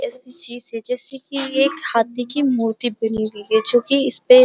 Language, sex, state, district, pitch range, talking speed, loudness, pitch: Hindi, female, Uttar Pradesh, Muzaffarnagar, 230-275 Hz, 160 wpm, -19 LUFS, 250 Hz